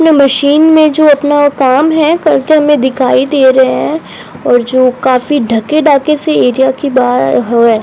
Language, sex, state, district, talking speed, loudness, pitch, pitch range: Hindi, female, Rajasthan, Bikaner, 185 wpm, -9 LUFS, 280 Hz, 260-305 Hz